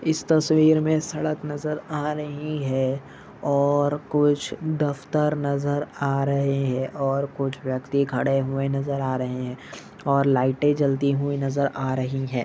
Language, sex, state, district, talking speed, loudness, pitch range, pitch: Hindi, male, Chhattisgarh, Rajnandgaon, 150 wpm, -24 LUFS, 135-150 Hz, 140 Hz